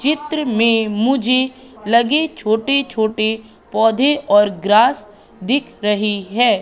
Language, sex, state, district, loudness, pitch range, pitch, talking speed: Hindi, female, Madhya Pradesh, Katni, -16 LUFS, 215-270 Hz, 230 Hz, 110 wpm